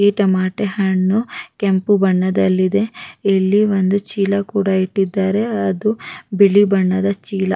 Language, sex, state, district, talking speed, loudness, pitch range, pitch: Kannada, female, Karnataka, Raichur, 120 wpm, -17 LUFS, 190-205 Hz, 195 Hz